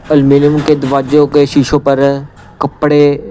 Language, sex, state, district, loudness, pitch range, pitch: Hindi, male, Punjab, Pathankot, -11 LUFS, 140-150 Hz, 145 Hz